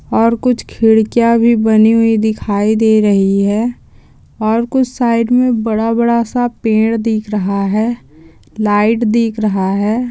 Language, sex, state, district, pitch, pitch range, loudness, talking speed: Hindi, female, Bihar, Kishanganj, 225 Hz, 215-235 Hz, -13 LUFS, 145 wpm